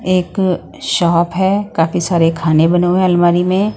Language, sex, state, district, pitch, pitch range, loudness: Hindi, female, Haryana, Rohtak, 175 Hz, 170-185 Hz, -14 LUFS